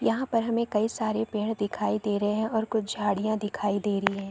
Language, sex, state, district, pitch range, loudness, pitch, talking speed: Hindi, female, Chhattisgarh, Korba, 205-220 Hz, -28 LUFS, 215 Hz, 235 wpm